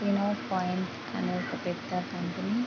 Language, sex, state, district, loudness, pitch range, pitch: Telugu, female, Andhra Pradesh, Krishna, -32 LUFS, 180-205 Hz, 190 Hz